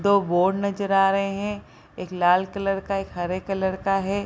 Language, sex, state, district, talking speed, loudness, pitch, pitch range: Hindi, female, Bihar, Bhagalpur, 210 wpm, -23 LUFS, 195 Hz, 190-200 Hz